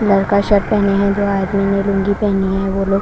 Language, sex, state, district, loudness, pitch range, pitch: Hindi, female, Maharashtra, Washim, -16 LUFS, 195-200 Hz, 200 Hz